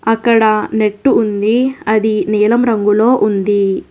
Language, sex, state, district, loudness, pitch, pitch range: Telugu, female, Telangana, Hyderabad, -13 LUFS, 215 Hz, 210-230 Hz